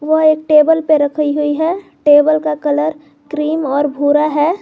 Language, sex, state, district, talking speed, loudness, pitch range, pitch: Hindi, female, Jharkhand, Garhwa, 180 wpm, -14 LUFS, 290-310 Hz, 300 Hz